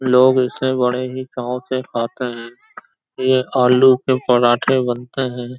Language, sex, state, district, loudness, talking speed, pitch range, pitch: Hindi, male, Uttar Pradesh, Hamirpur, -17 LUFS, 140 wpm, 125-130 Hz, 125 Hz